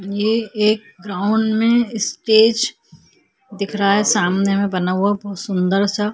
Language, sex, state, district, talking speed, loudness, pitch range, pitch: Hindi, female, Chhattisgarh, Korba, 135 wpm, -18 LUFS, 195-220 Hz, 205 Hz